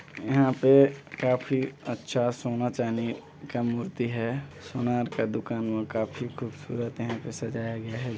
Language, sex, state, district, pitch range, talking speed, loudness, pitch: Hindi, male, Chhattisgarh, Balrampur, 115-135 Hz, 145 wpm, -28 LUFS, 120 Hz